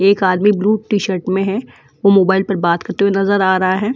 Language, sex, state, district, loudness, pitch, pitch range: Hindi, female, Delhi, New Delhi, -15 LUFS, 195 Hz, 190-205 Hz